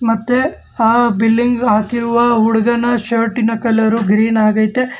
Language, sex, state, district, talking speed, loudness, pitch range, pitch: Kannada, male, Karnataka, Bangalore, 110 wpm, -14 LUFS, 225-240 Hz, 230 Hz